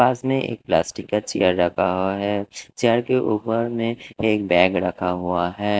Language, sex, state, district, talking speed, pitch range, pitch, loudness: Hindi, male, Delhi, New Delhi, 185 wpm, 90-115 Hz, 105 Hz, -21 LUFS